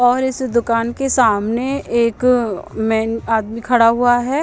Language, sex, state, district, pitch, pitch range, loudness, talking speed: Hindi, female, Chandigarh, Chandigarh, 235 Hz, 230-250 Hz, -17 LUFS, 160 wpm